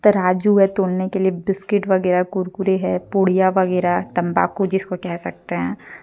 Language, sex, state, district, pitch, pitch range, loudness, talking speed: Hindi, female, Jharkhand, Deoghar, 185 Hz, 180-195 Hz, -19 LUFS, 160 wpm